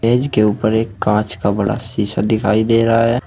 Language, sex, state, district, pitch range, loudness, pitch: Hindi, male, Uttar Pradesh, Saharanpur, 105-115 Hz, -16 LUFS, 110 Hz